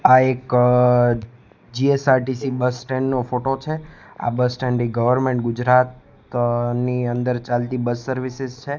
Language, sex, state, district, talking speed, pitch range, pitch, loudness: Gujarati, male, Gujarat, Gandhinagar, 115 wpm, 120-130 Hz, 125 Hz, -20 LUFS